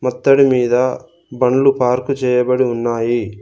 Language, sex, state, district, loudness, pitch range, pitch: Telugu, male, Telangana, Mahabubabad, -15 LUFS, 120-130 Hz, 125 Hz